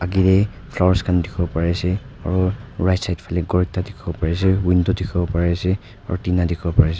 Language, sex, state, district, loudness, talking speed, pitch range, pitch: Nagamese, male, Nagaland, Kohima, -20 LUFS, 205 wpm, 85-95 Hz, 90 Hz